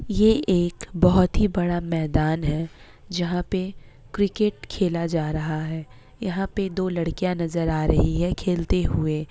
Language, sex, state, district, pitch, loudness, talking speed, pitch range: Hindi, female, Bihar, Kishanganj, 175 Hz, -24 LUFS, 155 wpm, 155-185 Hz